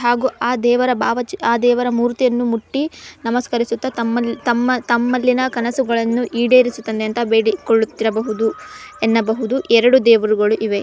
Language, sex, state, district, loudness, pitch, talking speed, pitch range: Kannada, female, Karnataka, Chamarajanagar, -17 LUFS, 240 Hz, 110 wpm, 230-250 Hz